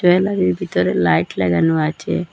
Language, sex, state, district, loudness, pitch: Bengali, female, Assam, Hailakandi, -17 LUFS, 155 Hz